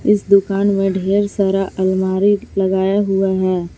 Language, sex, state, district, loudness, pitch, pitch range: Hindi, female, Jharkhand, Palamu, -16 LUFS, 195 Hz, 190-200 Hz